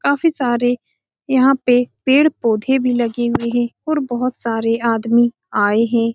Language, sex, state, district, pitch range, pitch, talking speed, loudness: Hindi, female, Bihar, Saran, 230-265 Hz, 240 Hz, 145 wpm, -17 LUFS